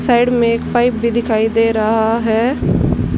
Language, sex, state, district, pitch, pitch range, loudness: Hindi, female, Haryana, Charkhi Dadri, 230 Hz, 225-240 Hz, -15 LUFS